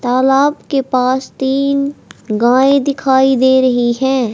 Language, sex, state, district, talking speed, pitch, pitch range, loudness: Hindi, female, Haryana, Jhajjar, 125 wpm, 265 Hz, 255-275 Hz, -13 LUFS